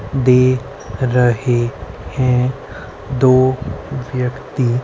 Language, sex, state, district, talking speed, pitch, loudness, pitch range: Hindi, male, Haryana, Rohtak, 75 wpm, 125 Hz, -16 LUFS, 120-130 Hz